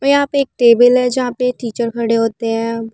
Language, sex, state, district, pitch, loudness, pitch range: Hindi, female, Uttar Pradesh, Muzaffarnagar, 240 Hz, -15 LUFS, 230-250 Hz